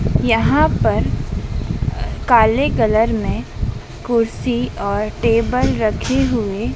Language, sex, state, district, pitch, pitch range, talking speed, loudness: Hindi, female, Madhya Pradesh, Dhar, 225 Hz, 200-235 Hz, 100 wpm, -18 LUFS